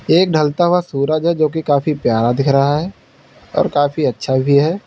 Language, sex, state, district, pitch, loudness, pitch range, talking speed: Hindi, male, Uttar Pradesh, Lalitpur, 150 Hz, -16 LUFS, 140-165 Hz, 210 wpm